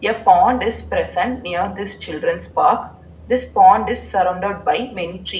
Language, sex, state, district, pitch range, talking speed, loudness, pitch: English, female, Telangana, Hyderabad, 195-250 Hz, 180 wpm, -18 LUFS, 235 Hz